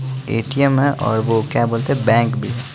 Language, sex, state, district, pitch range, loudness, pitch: Hindi, male, Bihar, West Champaran, 115-135 Hz, -18 LUFS, 125 Hz